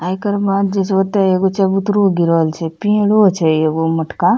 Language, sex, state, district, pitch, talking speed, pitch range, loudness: Maithili, female, Bihar, Madhepura, 190 Hz, 190 wpm, 165-200 Hz, -15 LUFS